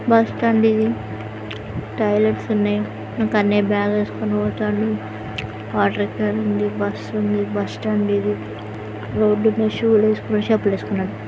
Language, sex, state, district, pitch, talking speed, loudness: Telugu, female, Andhra Pradesh, Srikakulam, 110 Hz, 130 wpm, -20 LUFS